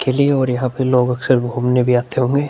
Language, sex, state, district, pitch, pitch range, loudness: Hindi, male, Uttar Pradesh, Hamirpur, 125 Hz, 125-130 Hz, -17 LUFS